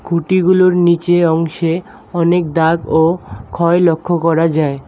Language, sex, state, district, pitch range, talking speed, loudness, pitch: Bengali, male, West Bengal, Alipurduar, 160-175 Hz, 125 wpm, -14 LUFS, 170 Hz